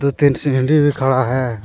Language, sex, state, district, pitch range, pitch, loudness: Hindi, male, Jharkhand, Deoghar, 130-145 Hz, 135 Hz, -16 LUFS